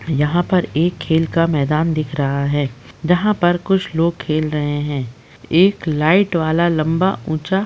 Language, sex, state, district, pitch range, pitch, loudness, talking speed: Hindi, female, Bihar, Saran, 150-175 Hz, 160 Hz, -17 LUFS, 175 wpm